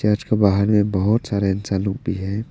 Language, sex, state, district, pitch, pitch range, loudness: Hindi, male, Arunachal Pradesh, Papum Pare, 100 Hz, 95-105 Hz, -20 LUFS